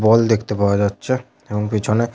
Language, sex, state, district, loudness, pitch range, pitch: Bengali, male, West Bengal, Paschim Medinipur, -19 LUFS, 105-115 Hz, 110 Hz